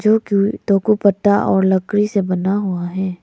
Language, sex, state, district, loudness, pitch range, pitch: Hindi, female, Arunachal Pradesh, Lower Dibang Valley, -17 LUFS, 190-205 Hz, 200 Hz